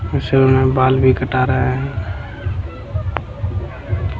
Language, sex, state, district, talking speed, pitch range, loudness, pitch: Hindi, male, Bihar, Jamui, 115 wpm, 95-130 Hz, -18 LUFS, 110 Hz